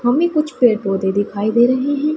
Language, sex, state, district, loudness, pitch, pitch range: Hindi, female, Punjab, Pathankot, -16 LUFS, 245 Hz, 205-290 Hz